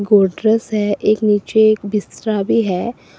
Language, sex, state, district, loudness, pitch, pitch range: Hindi, female, Assam, Sonitpur, -16 LUFS, 215 Hz, 205-220 Hz